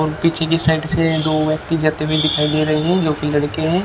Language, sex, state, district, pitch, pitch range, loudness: Hindi, male, Haryana, Jhajjar, 155 Hz, 155-165 Hz, -17 LUFS